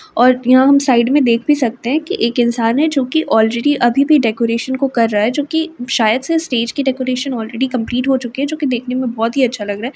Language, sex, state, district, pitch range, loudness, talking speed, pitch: Hindi, female, Uttar Pradesh, Varanasi, 235-280 Hz, -15 LUFS, 260 wpm, 255 Hz